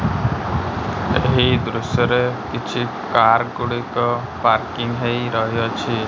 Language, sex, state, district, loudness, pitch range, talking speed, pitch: Odia, male, Odisha, Malkangiri, -19 LUFS, 115-125 Hz, 90 wpm, 120 Hz